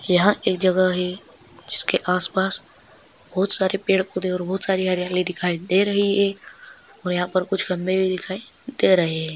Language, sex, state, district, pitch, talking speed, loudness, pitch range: Hindi, male, Maharashtra, Solapur, 185 Hz, 180 wpm, -21 LUFS, 180-195 Hz